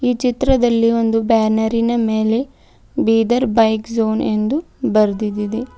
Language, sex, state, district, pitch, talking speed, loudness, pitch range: Kannada, female, Karnataka, Bidar, 230 Hz, 105 wpm, -17 LUFS, 220-245 Hz